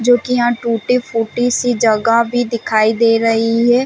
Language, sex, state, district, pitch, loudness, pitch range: Hindi, female, Chhattisgarh, Bilaspur, 235 Hz, -15 LUFS, 225-245 Hz